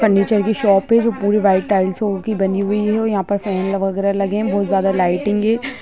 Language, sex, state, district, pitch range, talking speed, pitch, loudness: Hindi, female, Bihar, Gaya, 195-215 Hz, 245 wpm, 200 Hz, -17 LUFS